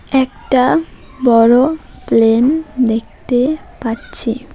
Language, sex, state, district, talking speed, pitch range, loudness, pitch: Bengali, female, West Bengal, Alipurduar, 65 wpm, 230-270 Hz, -14 LUFS, 255 Hz